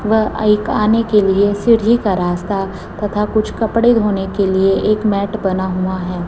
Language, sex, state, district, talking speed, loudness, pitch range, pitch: Hindi, female, Chhattisgarh, Raipur, 180 wpm, -15 LUFS, 195-215 Hz, 205 Hz